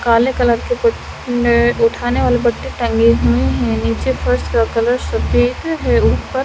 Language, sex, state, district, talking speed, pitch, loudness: Hindi, female, Haryana, Charkhi Dadri, 160 wpm, 230 Hz, -15 LUFS